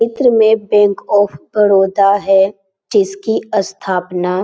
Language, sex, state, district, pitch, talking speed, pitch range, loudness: Hindi, female, Bihar, Jamui, 200 Hz, 135 wpm, 190-210 Hz, -14 LUFS